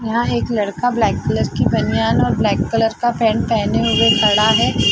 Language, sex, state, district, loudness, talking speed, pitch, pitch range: Hindi, female, Uttar Pradesh, Jalaun, -16 LUFS, 195 wpm, 225 Hz, 215-235 Hz